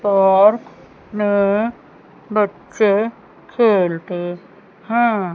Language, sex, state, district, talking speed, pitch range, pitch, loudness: Hindi, female, Chandigarh, Chandigarh, 55 wpm, 190-220 Hz, 205 Hz, -17 LUFS